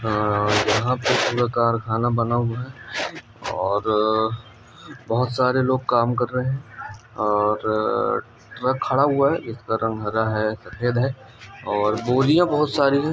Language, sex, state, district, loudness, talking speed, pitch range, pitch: Hindi, male, Andhra Pradesh, Anantapur, -22 LUFS, 140 wpm, 110-130 Hz, 120 Hz